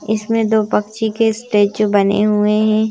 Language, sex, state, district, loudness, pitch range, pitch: Hindi, female, Madhya Pradesh, Bhopal, -15 LUFS, 210-220 Hz, 215 Hz